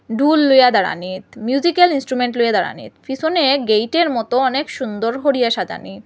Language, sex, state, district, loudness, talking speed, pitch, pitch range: Bengali, female, Assam, Hailakandi, -16 LUFS, 140 wpm, 255 Hz, 225-285 Hz